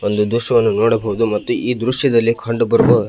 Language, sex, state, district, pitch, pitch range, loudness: Kannada, male, Karnataka, Belgaum, 115 Hz, 110-120 Hz, -16 LUFS